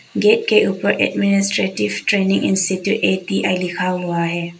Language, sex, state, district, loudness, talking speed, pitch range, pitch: Hindi, female, Arunachal Pradesh, Papum Pare, -17 LUFS, 130 wpm, 175-200 Hz, 190 Hz